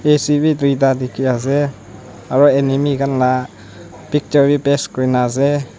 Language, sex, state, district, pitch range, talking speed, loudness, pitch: Nagamese, male, Nagaland, Dimapur, 125-145 Hz, 165 wpm, -16 LUFS, 135 Hz